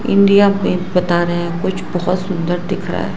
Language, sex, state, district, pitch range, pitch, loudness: Hindi, female, Gujarat, Gandhinagar, 175-190 Hz, 180 Hz, -16 LUFS